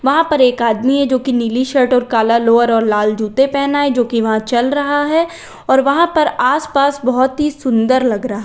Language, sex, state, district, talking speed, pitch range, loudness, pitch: Hindi, female, Uttar Pradesh, Lalitpur, 225 wpm, 235-280 Hz, -14 LUFS, 260 Hz